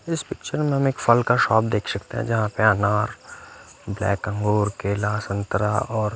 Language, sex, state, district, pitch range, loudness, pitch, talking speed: Hindi, male, Punjab, Fazilka, 105-115 Hz, -22 LUFS, 105 Hz, 185 wpm